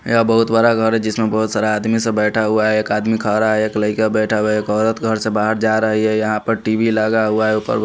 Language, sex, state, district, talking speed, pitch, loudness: Hindi, male, Haryana, Rohtak, 280 wpm, 110 Hz, -16 LUFS